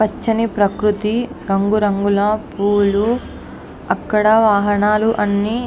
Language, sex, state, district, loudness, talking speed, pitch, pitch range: Telugu, female, Andhra Pradesh, Anantapur, -16 LUFS, 95 wpm, 210 Hz, 205-220 Hz